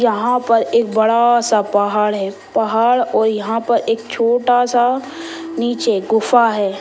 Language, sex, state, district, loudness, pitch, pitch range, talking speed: Hindi, female, Bihar, Saran, -16 LUFS, 230 Hz, 220-245 Hz, 150 wpm